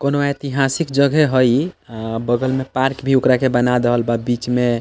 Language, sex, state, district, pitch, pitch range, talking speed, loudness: Bhojpuri, male, Bihar, East Champaran, 130 Hz, 120-135 Hz, 225 wpm, -17 LUFS